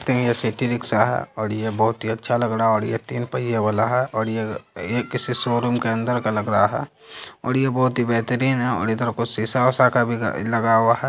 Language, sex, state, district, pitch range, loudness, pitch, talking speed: Hindi, male, Bihar, Saharsa, 110-125 Hz, -21 LUFS, 120 Hz, 250 wpm